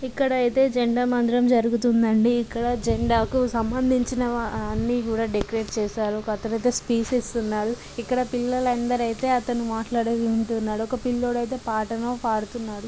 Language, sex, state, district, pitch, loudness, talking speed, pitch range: Telugu, female, Andhra Pradesh, Guntur, 235 Hz, -24 LUFS, 125 wpm, 225-245 Hz